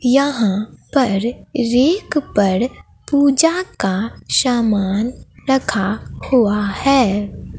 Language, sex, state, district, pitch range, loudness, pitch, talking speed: Hindi, female, Bihar, Katihar, 205-275 Hz, -17 LUFS, 240 Hz, 80 wpm